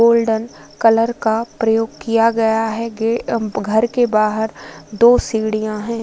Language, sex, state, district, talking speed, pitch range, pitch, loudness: Hindi, female, Uttar Pradesh, Varanasi, 130 wpm, 220-230 Hz, 225 Hz, -17 LUFS